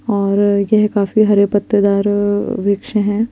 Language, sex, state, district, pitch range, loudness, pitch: Hindi, female, Chandigarh, Chandigarh, 200-210 Hz, -15 LUFS, 205 Hz